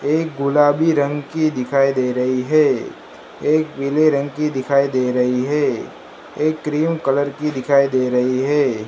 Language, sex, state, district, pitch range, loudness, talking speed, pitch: Hindi, male, Gujarat, Gandhinagar, 130-150 Hz, -18 LUFS, 160 wpm, 140 Hz